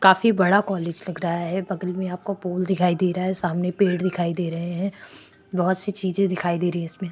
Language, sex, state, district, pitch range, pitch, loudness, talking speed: Hindi, female, Chhattisgarh, Korba, 175-190 Hz, 185 Hz, -23 LUFS, 245 wpm